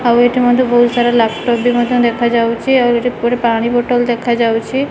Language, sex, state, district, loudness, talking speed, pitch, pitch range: Odia, female, Odisha, Malkangiri, -13 LUFS, 185 wpm, 240 Hz, 235-245 Hz